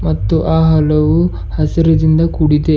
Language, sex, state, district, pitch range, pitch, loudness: Kannada, male, Karnataka, Bidar, 150-160 Hz, 155 Hz, -13 LUFS